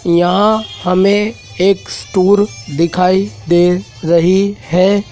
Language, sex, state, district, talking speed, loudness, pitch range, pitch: Hindi, male, Madhya Pradesh, Dhar, 95 wpm, -13 LUFS, 175-200 Hz, 185 Hz